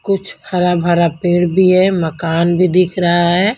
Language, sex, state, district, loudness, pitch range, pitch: Hindi, female, Haryana, Jhajjar, -14 LUFS, 175-185 Hz, 180 Hz